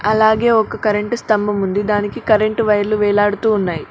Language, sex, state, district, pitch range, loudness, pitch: Telugu, female, Telangana, Mahabubabad, 205-220 Hz, -16 LUFS, 210 Hz